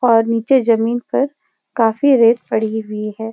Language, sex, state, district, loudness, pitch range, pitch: Hindi, female, Uttarakhand, Uttarkashi, -16 LUFS, 220-255 Hz, 230 Hz